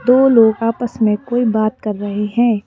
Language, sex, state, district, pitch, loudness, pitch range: Hindi, female, Madhya Pradesh, Bhopal, 225 Hz, -15 LUFS, 210-240 Hz